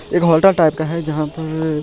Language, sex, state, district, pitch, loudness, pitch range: Hindi, male, Bihar, Madhepura, 160 Hz, -16 LUFS, 155-165 Hz